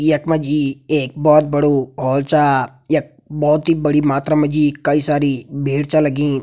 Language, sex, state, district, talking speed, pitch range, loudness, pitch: Garhwali, male, Uttarakhand, Tehri Garhwal, 170 wpm, 140-150 Hz, -16 LUFS, 145 Hz